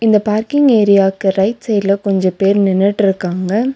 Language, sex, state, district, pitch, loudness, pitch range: Tamil, female, Tamil Nadu, Nilgiris, 200 Hz, -14 LUFS, 195-215 Hz